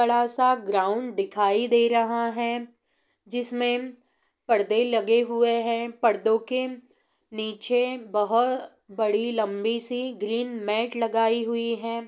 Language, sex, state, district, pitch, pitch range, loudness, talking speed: Hindi, female, Bihar, East Champaran, 235 Hz, 220-245 Hz, -25 LUFS, 125 wpm